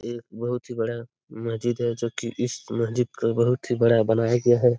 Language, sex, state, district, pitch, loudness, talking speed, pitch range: Hindi, male, Bihar, Darbhanga, 120 Hz, -24 LUFS, 215 wpm, 115-120 Hz